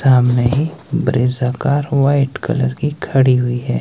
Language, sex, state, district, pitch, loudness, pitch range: Hindi, male, Himachal Pradesh, Shimla, 135 Hz, -16 LUFS, 125-145 Hz